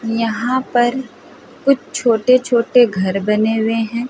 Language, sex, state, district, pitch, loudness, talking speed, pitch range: Hindi, female, Uttar Pradesh, Hamirpur, 235 Hz, -16 LUFS, 130 wpm, 225-250 Hz